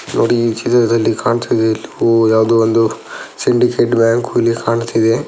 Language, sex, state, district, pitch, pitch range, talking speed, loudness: Kannada, male, Karnataka, Dakshina Kannada, 115 Hz, 110-120 Hz, 150 wpm, -14 LUFS